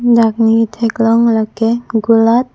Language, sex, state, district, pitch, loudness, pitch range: Karbi, female, Assam, Karbi Anglong, 225 Hz, -12 LUFS, 225-235 Hz